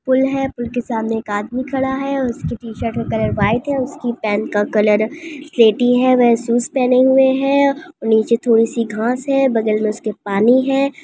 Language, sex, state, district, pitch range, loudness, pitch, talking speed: Hindi, female, Andhra Pradesh, Anantapur, 220-265 Hz, -17 LUFS, 240 Hz, 190 wpm